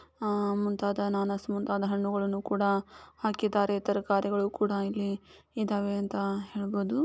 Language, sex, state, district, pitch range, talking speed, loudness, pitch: Kannada, female, Karnataka, Chamarajanagar, 200-205 Hz, 95 wpm, -30 LUFS, 200 Hz